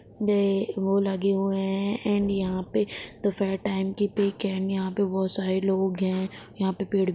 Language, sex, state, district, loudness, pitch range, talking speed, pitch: Hindi, female, Bihar, Gopalganj, -26 LUFS, 190-200 Hz, 210 wpm, 195 Hz